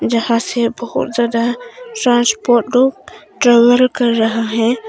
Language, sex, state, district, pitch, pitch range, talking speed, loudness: Hindi, female, Arunachal Pradesh, Longding, 240 Hz, 230-245 Hz, 125 wpm, -14 LUFS